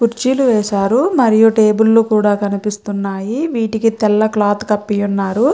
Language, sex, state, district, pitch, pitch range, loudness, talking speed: Telugu, female, Andhra Pradesh, Chittoor, 215 Hz, 205-230 Hz, -14 LUFS, 120 wpm